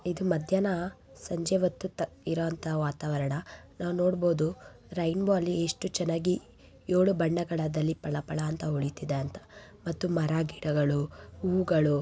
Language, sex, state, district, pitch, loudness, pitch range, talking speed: Kannada, female, Karnataka, Bijapur, 165 Hz, -30 LUFS, 155-180 Hz, 105 wpm